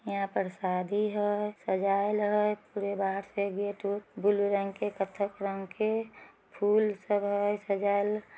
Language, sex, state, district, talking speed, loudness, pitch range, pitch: Magahi, female, Bihar, Samastipur, 150 wpm, -30 LUFS, 195-210 Hz, 205 Hz